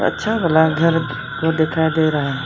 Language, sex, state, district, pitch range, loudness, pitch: Hindi, female, Arunachal Pradesh, Lower Dibang Valley, 150-165 Hz, -18 LUFS, 160 Hz